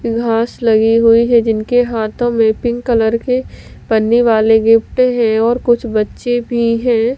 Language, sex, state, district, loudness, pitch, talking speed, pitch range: Hindi, female, Delhi, New Delhi, -13 LUFS, 230 Hz, 150 wpm, 225-240 Hz